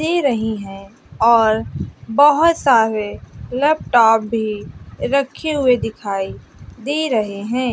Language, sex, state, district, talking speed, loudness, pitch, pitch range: Hindi, female, Bihar, West Champaran, 110 wpm, -17 LUFS, 230 Hz, 210-275 Hz